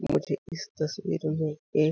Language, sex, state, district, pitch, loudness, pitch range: Hindi, male, Chhattisgarh, Balrampur, 155 Hz, -30 LUFS, 155-170 Hz